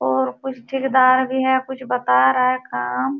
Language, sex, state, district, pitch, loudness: Hindi, female, Uttar Pradesh, Jalaun, 255 Hz, -19 LUFS